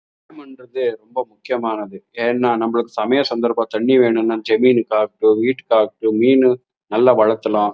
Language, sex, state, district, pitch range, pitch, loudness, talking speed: Tamil, male, Karnataka, Chamarajanagar, 110-125 Hz, 115 Hz, -17 LUFS, 125 wpm